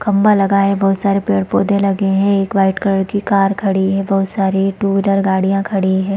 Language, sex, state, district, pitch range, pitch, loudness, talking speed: Hindi, female, Chhattisgarh, Bastar, 195-200 Hz, 195 Hz, -15 LUFS, 235 wpm